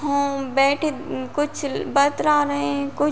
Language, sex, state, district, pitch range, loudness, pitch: Hindi, female, Uttar Pradesh, Muzaffarnagar, 275-295 Hz, -21 LUFS, 285 Hz